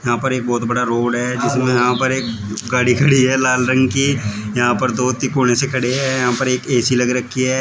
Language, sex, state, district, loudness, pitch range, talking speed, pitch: Hindi, male, Uttar Pradesh, Shamli, -17 LUFS, 120-130 Hz, 245 wpm, 125 Hz